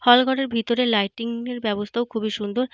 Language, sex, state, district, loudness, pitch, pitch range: Bengali, female, Jharkhand, Jamtara, -23 LUFS, 235 Hz, 215-245 Hz